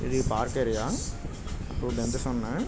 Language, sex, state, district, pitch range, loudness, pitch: Telugu, male, Andhra Pradesh, Krishna, 115-130 Hz, -30 LUFS, 125 Hz